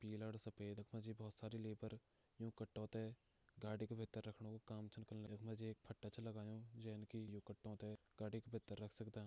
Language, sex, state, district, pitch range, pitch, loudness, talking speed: Garhwali, male, Uttarakhand, Tehri Garhwal, 105-110 Hz, 110 Hz, -53 LUFS, 235 wpm